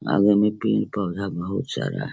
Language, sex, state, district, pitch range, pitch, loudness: Hindi, female, Bihar, Sitamarhi, 95-105 Hz, 100 Hz, -23 LUFS